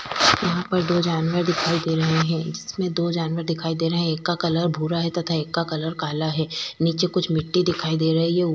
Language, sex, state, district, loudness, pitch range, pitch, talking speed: Hindi, female, Goa, North and South Goa, -22 LUFS, 160-175 Hz, 165 Hz, 230 wpm